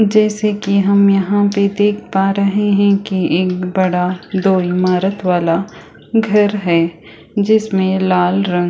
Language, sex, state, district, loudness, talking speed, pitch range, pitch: Hindi, female, Chhattisgarh, Sukma, -15 LUFS, 140 wpm, 180-205 Hz, 195 Hz